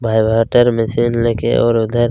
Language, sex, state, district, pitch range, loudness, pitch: Hindi, male, Chhattisgarh, Kabirdham, 115-120 Hz, -14 LUFS, 115 Hz